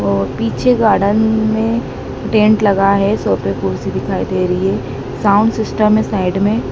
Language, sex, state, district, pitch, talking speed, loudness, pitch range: Hindi, female, Madhya Pradesh, Dhar, 200 Hz, 160 wpm, -15 LUFS, 130-215 Hz